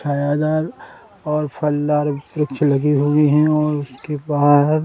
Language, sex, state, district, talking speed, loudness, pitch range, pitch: Hindi, male, Uttar Pradesh, Hamirpur, 135 wpm, -18 LUFS, 145-150 Hz, 150 Hz